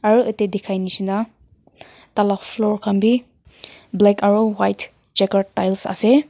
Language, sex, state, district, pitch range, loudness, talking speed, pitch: Nagamese, female, Nagaland, Kohima, 195-220 Hz, -19 LUFS, 135 wpm, 210 Hz